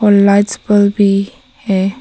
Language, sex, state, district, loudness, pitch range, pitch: Hindi, female, Arunachal Pradesh, Papum Pare, -12 LUFS, 200-205 Hz, 200 Hz